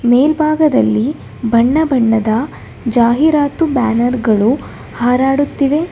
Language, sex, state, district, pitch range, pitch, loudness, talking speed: Kannada, female, Karnataka, Bangalore, 235-295 Hz, 250 Hz, -14 LUFS, 70 wpm